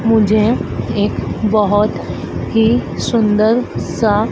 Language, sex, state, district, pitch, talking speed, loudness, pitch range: Hindi, female, Madhya Pradesh, Dhar, 220 Hz, 85 wpm, -15 LUFS, 210-225 Hz